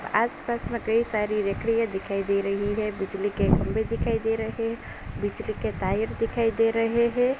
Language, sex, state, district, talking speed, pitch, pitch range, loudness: Hindi, female, Uttar Pradesh, Jalaun, 170 wpm, 225 Hz, 205-230 Hz, -26 LUFS